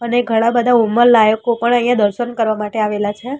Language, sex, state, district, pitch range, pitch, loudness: Gujarati, female, Gujarat, Gandhinagar, 215-240 Hz, 235 Hz, -15 LUFS